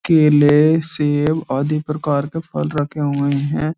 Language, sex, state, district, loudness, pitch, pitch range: Hindi, male, Uttar Pradesh, Jyotiba Phule Nagar, -17 LUFS, 150 Hz, 145-155 Hz